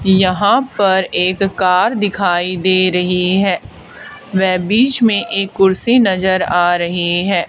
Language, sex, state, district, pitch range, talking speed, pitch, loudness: Hindi, female, Haryana, Charkhi Dadri, 180-200 Hz, 135 wpm, 190 Hz, -14 LUFS